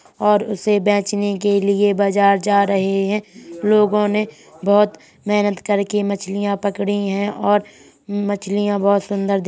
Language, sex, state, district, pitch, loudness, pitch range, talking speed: Hindi, male, Uttar Pradesh, Hamirpur, 205 Hz, -18 LUFS, 200-205 Hz, 150 wpm